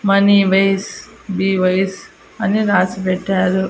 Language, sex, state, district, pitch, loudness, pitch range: Telugu, female, Andhra Pradesh, Annamaya, 195 Hz, -16 LUFS, 185-195 Hz